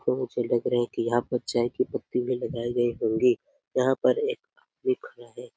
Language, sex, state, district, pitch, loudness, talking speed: Hindi, male, Chhattisgarh, Sarguja, 125 Hz, -27 LUFS, 235 wpm